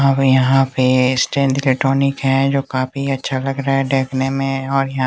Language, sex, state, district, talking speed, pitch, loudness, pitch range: Hindi, male, Bihar, West Champaran, 215 wpm, 135 Hz, -17 LUFS, 130-135 Hz